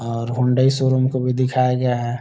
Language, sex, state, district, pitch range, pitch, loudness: Hindi, male, Bihar, Gopalganj, 120-130 Hz, 125 Hz, -19 LUFS